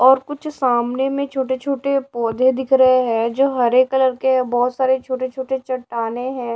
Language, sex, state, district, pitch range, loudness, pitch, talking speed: Hindi, female, Odisha, Sambalpur, 245-265 Hz, -18 LUFS, 260 Hz, 185 wpm